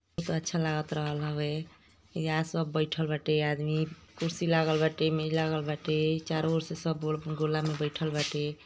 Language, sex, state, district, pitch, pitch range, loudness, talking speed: Hindi, female, Uttar Pradesh, Ghazipur, 155 Hz, 155-160 Hz, -31 LUFS, 160 wpm